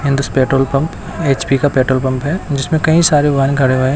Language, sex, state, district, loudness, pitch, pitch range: Hindi, male, Himachal Pradesh, Shimla, -14 LUFS, 140 Hz, 130-145 Hz